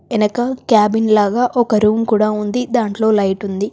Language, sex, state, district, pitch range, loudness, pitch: Telugu, female, Telangana, Komaram Bheem, 210-240 Hz, -15 LUFS, 215 Hz